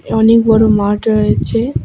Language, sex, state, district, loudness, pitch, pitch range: Bengali, female, West Bengal, Alipurduar, -12 LUFS, 220 Hz, 210-225 Hz